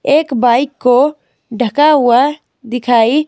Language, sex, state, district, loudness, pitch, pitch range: Hindi, female, Himachal Pradesh, Shimla, -12 LUFS, 250 Hz, 245-295 Hz